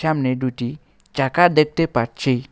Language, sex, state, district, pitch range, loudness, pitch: Bengali, male, West Bengal, Alipurduar, 130-155 Hz, -19 LUFS, 135 Hz